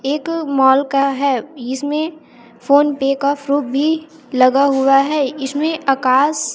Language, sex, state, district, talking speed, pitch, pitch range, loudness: Hindi, female, Chhattisgarh, Raipur, 130 wpm, 275 Hz, 270-295 Hz, -16 LUFS